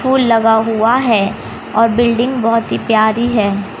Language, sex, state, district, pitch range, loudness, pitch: Hindi, female, Madhya Pradesh, Umaria, 220-240 Hz, -13 LUFS, 230 Hz